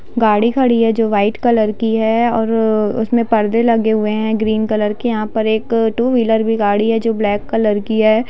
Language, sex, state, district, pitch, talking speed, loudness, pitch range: Hindi, female, Bihar, Sitamarhi, 220 Hz, 215 wpm, -15 LUFS, 215-230 Hz